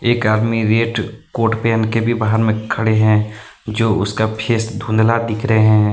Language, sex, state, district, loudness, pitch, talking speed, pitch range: Hindi, male, Jharkhand, Deoghar, -16 LUFS, 110 Hz, 180 wpm, 110-115 Hz